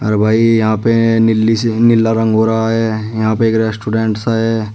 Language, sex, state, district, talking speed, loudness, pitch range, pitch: Hindi, male, Uttar Pradesh, Shamli, 215 wpm, -13 LUFS, 110-115 Hz, 110 Hz